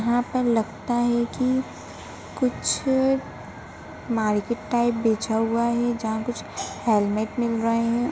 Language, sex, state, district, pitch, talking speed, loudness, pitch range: Hindi, female, Chhattisgarh, Bastar, 235 Hz, 125 wpm, -24 LUFS, 225-245 Hz